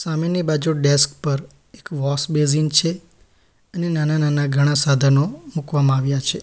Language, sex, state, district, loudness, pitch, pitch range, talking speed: Gujarati, male, Gujarat, Valsad, -19 LUFS, 145 Hz, 140-160 Hz, 140 wpm